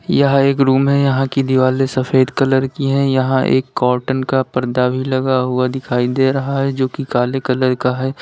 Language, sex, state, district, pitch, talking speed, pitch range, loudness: Hindi, male, Uttar Pradesh, Lalitpur, 130 Hz, 210 wpm, 130-135 Hz, -16 LUFS